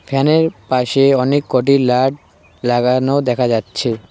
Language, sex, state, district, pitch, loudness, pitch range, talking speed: Bengali, male, West Bengal, Cooch Behar, 130 Hz, -15 LUFS, 125-135 Hz, 130 wpm